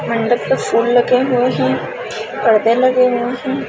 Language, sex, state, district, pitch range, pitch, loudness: Hindi, female, Chhattisgarh, Balrampur, 235-255 Hz, 245 Hz, -15 LUFS